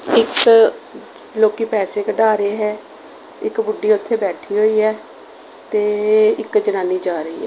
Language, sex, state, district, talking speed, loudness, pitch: Punjabi, female, Punjab, Kapurthala, 145 wpm, -17 LUFS, 220 Hz